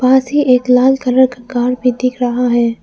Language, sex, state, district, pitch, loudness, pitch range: Hindi, female, Arunachal Pradesh, Lower Dibang Valley, 250 Hz, -13 LUFS, 245-260 Hz